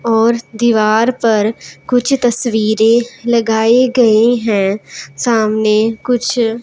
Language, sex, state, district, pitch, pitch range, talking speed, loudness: Hindi, male, Punjab, Pathankot, 230 Hz, 220-240 Hz, 90 wpm, -13 LUFS